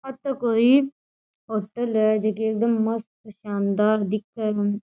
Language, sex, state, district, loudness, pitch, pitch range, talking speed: Rajasthani, female, Rajasthan, Churu, -23 LUFS, 220 Hz, 210-235 Hz, 150 wpm